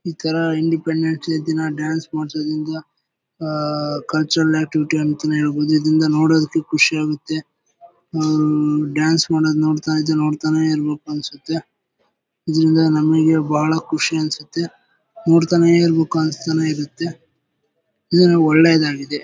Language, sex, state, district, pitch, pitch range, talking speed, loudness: Kannada, male, Karnataka, Bellary, 155 Hz, 150-160 Hz, 105 wpm, -18 LUFS